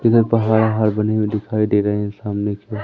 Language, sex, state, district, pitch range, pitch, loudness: Hindi, male, Madhya Pradesh, Umaria, 105-110 Hz, 105 Hz, -18 LUFS